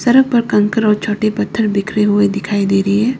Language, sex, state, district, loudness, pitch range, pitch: Hindi, female, Arunachal Pradesh, Lower Dibang Valley, -15 LUFS, 205-220 Hz, 210 Hz